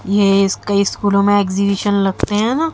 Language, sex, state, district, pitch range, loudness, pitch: Hindi, female, Haryana, Jhajjar, 195-205 Hz, -15 LUFS, 200 Hz